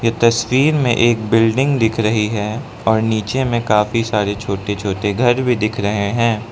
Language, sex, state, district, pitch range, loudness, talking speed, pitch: Hindi, male, Arunachal Pradesh, Lower Dibang Valley, 105-120 Hz, -17 LUFS, 175 wpm, 110 Hz